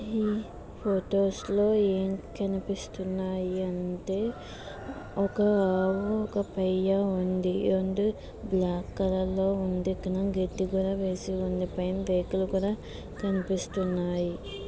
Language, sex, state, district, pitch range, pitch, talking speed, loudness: Telugu, female, Andhra Pradesh, Visakhapatnam, 185-195 Hz, 190 Hz, 60 wpm, -29 LUFS